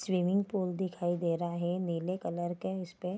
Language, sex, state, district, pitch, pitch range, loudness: Hindi, female, Bihar, Darbhanga, 180 Hz, 175-190 Hz, -33 LUFS